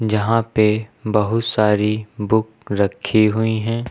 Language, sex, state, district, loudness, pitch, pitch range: Hindi, male, Uttar Pradesh, Lucknow, -19 LUFS, 110 Hz, 105-110 Hz